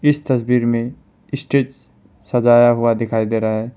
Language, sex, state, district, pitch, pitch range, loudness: Hindi, male, West Bengal, Alipurduar, 120 Hz, 115-130 Hz, -17 LUFS